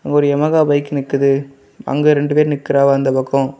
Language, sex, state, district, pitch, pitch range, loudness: Tamil, male, Tamil Nadu, Kanyakumari, 140 Hz, 135-145 Hz, -15 LUFS